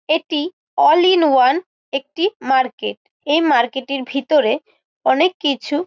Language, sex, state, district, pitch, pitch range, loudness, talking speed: Bengali, female, West Bengal, Malda, 295 Hz, 270-330 Hz, -17 LUFS, 125 wpm